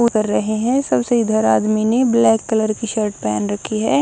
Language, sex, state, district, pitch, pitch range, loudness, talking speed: Hindi, male, Odisha, Nuapada, 220 Hz, 215-235 Hz, -17 LUFS, 210 wpm